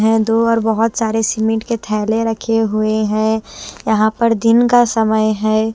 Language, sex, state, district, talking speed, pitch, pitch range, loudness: Hindi, female, Bihar, West Champaran, 175 wpm, 225 Hz, 215-230 Hz, -15 LUFS